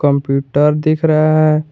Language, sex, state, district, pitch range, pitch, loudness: Hindi, male, Jharkhand, Garhwa, 145-155 Hz, 155 Hz, -13 LUFS